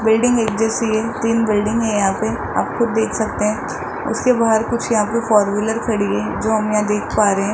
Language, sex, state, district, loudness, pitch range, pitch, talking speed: Hindi, male, Rajasthan, Jaipur, -18 LUFS, 210-230 Hz, 220 Hz, 240 wpm